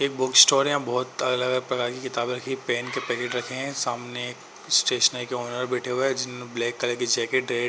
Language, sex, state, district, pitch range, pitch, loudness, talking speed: Hindi, male, Uttar Pradesh, Muzaffarnagar, 120-130 Hz, 125 Hz, -24 LUFS, 235 wpm